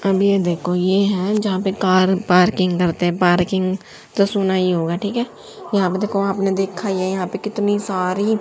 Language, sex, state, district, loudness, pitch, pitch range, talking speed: Hindi, female, Haryana, Charkhi Dadri, -19 LUFS, 190 Hz, 180-200 Hz, 205 wpm